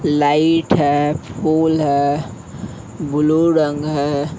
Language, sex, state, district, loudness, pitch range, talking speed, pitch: Hindi, male, Bihar, Patna, -16 LUFS, 145-155 Hz, 110 wpm, 150 Hz